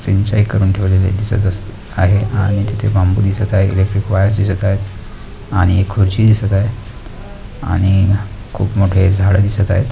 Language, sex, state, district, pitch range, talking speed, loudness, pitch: Marathi, male, Maharashtra, Aurangabad, 95-105 Hz, 155 wpm, -15 LUFS, 100 Hz